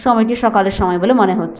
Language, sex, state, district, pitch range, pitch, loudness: Bengali, female, West Bengal, Malda, 195-240 Hz, 225 Hz, -14 LUFS